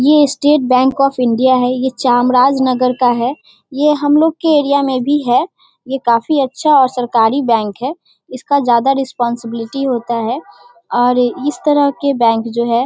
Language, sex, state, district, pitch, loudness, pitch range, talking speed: Hindi, female, Bihar, Darbhanga, 255 Hz, -14 LUFS, 240-285 Hz, 185 wpm